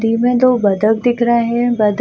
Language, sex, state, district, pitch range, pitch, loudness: Hindi, female, Bihar, Samastipur, 215-245 Hz, 235 Hz, -14 LUFS